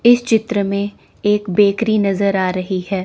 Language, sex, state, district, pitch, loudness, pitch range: Hindi, female, Chandigarh, Chandigarh, 200 Hz, -17 LUFS, 195-210 Hz